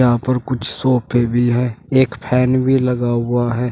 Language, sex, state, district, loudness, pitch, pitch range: Hindi, male, Uttar Pradesh, Shamli, -17 LUFS, 125 Hz, 120-130 Hz